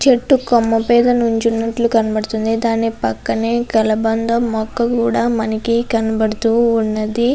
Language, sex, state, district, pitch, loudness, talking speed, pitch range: Telugu, female, Andhra Pradesh, Anantapur, 230 Hz, -16 LUFS, 105 wpm, 220-235 Hz